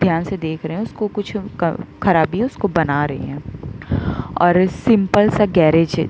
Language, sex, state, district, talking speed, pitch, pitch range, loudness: Hindi, female, Uttar Pradesh, Muzaffarnagar, 195 wpm, 170 Hz, 155-205 Hz, -18 LUFS